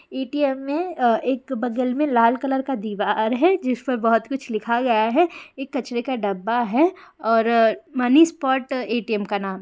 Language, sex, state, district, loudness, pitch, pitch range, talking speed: Hindi, female, Bihar, Jamui, -21 LUFS, 250 Hz, 225-275 Hz, 180 wpm